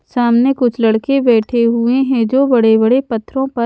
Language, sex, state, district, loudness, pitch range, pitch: Hindi, female, Haryana, Charkhi Dadri, -13 LUFS, 230-260 Hz, 240 Hz